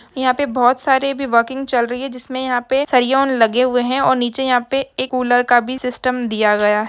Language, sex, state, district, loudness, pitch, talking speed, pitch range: Hindi, female, Bihar, Jahanabad, -17 LUFS, 255 Hz, 245 wpm, 245-265 Hz